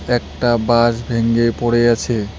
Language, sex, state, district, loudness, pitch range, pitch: Bengali, male, West Bengal, Cooch Behar, -16 LUFS, 115-120 Hz, 120 Hz